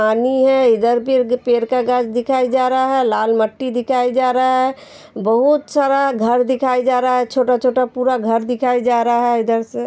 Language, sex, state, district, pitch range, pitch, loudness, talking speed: Hindi, female, Uttar Pradesh, Hamirpur, 240-260 Hz, 250 Hz, -16 LUFS, 205 wpm